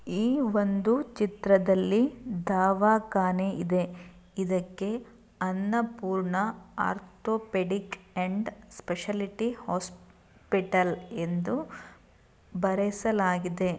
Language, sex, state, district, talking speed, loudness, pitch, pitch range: Kannada, female, Karnataka, Mysore, 50 wpm, -29 LUFS, 195 Hz, 185-215 Hz